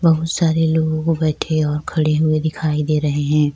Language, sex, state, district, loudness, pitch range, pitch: Urdu, female, Bihar, Saharsa, -18 LUFS, 150-160 Hz, 155 Hz